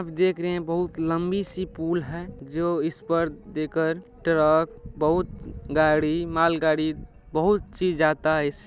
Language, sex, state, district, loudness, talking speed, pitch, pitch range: Maithili, male, Bihar, Supaul, -24 LUFS, 150 wpm, 165 Hz, 155-175 Hz